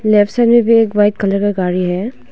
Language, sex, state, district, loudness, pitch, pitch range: Hindi, female, Arunachal Pradesh, Longding, -13 LUFS, 205 Hz, 195-230 Hz